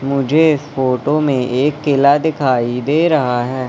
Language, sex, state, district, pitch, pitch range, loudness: Hindi, male, Madhya Pradesh, Katni, 140 Hz, 130-150 Hz, -15 LUFS